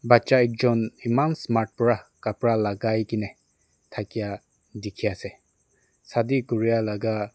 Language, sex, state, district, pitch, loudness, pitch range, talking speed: Nagamese, male, Nagaland, Dimapur, 110 Hz, -24 LUFS, 105-120 Hz, 115 wpm